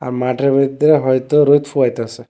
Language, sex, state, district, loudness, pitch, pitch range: Bengali, male, Tripura, West Tripura, -14 LUFS, 135 Hz, 125-145 Hz